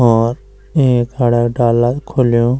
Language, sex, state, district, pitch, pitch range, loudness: Garhwali, male, Uttarakhand, Uttarkashi, 120 Hz, 120-130 Hz, -14 LUFS